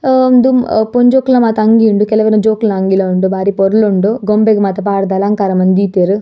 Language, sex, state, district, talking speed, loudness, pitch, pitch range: Tulu, female, Karnataka, Dakshina Kannada, 175 wpm, -11 LUFS, 210 Hz, 195-225 Hz